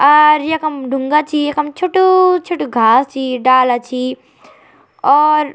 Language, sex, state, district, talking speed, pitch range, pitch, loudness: Garhwali, female, Uttarakhand, Tehri Garhwal, 140 wpm, 260-305 Hz, 295 Hz, -13 LUFS